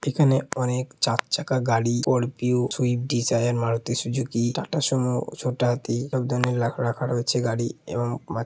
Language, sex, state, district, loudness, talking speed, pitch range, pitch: Bengali, male, West Bengal, Purulia, -24 LUFS, 155 wpm, 120-130 Hz, 125 Hz